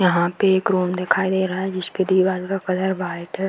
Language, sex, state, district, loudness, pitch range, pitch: Hindi, female, Bihar, Darbhanga, -21 LUFS, 180-190 Hz, 185 Hz